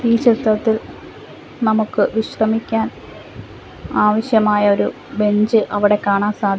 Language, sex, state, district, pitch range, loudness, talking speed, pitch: Malayalam, female, Kerala, Kollam, 200-220 Hz, -17 LUFS, 90 wpm, 210 Hz